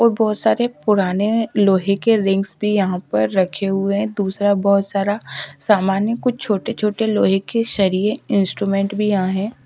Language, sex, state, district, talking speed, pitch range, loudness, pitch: Hindi, female, Haryana, Rohtak, 175 wpm, 195-220 Hz, -18 LUFS, 200 Hz